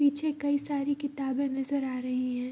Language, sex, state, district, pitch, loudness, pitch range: Hindi, female, Bihar, Kishanganj, 280 Hz, -30 LUFS, 260-285 Hz